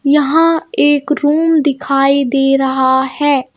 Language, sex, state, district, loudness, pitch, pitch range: Hindi, female, Madhya Pradesh, Bhopal, -13 LUFS, 280 Hz, 270-295 Hz